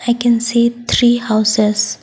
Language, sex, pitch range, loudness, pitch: English, female, 215-240 Hz, -14 LUFS, 235 Hz